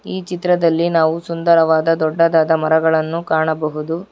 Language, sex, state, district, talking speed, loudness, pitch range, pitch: Kannada, female, Karnataka, Bangalore, 100 wpm, -16 LUFS, 160-170 Hz, 165 Hz